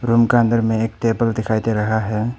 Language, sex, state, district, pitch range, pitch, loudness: Hindi, male, Arunachal Pradesh, Papum Pare, 110-115 Hz, 115 Hz, -18 LUFS